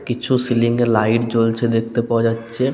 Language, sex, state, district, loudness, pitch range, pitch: Bengali, male, West Bengal, Paschim Medinipur, -18 LUFS, 115-120 Hz, 115 Hz